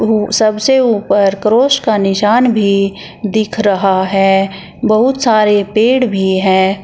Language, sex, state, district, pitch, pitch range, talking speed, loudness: Hindi, female, Uttar Pradesh, Shamli, 210 Hz, 195-220 Hz, 125 wpm, -12 LUFS